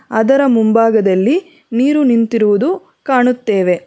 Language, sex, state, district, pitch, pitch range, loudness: Kannada, female, Karnataka, Bangalore, 235 Hz, 220-270 Hz, -13 LUFS